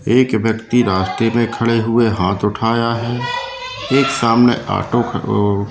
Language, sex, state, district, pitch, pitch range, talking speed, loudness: Hindi, male, Madhya Pradesh, Katni, 115 Hz, 110-120 Hz, 135 wpm, -16 LUFS